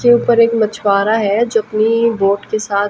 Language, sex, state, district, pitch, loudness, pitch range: Hindi, female, Haryana, Jhajjar, 215 Hz, -14 LUFS, 205-230 Hz